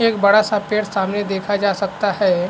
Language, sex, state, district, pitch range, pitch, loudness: Hindi, male, Bihar, Araria, 200-215 Hz, 205 Hz, -18 LUFS